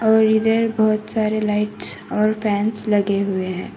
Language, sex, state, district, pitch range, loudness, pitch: Hindi, female, Karnataka, Koppal, 210-220 Hz, -19 LUFS, 215 Hz